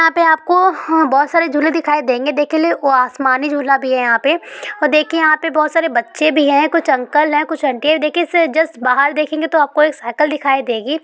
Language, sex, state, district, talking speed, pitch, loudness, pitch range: Hindi, female, Bihar, East Champaran, 230 wpm, 300 Hz, -14 LUFS, 275-320 Hz